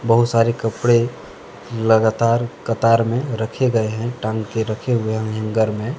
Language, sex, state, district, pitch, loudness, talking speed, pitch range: Hindi, male, Jharkhand, Deoghar, 115 Hz, -19 LUFS, 150 wpm, 110-120 Hz